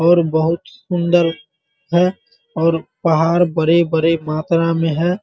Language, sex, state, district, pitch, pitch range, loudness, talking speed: Hindi, male, Bihar, Muzaffarpur, 165 Hz, 160-175 Hz, -17 LUFS, 125 wpm